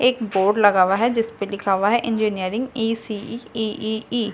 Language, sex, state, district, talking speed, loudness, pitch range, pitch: Hindi, female, Delhi, New Delhi, 205 wpm, -21 LUFS, 200-230 Hz, 220 Hz